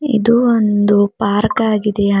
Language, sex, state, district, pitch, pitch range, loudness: Kannada, female, Karnataka, Bidar, 210 Hz, 205-225 Hz, -14 LUFS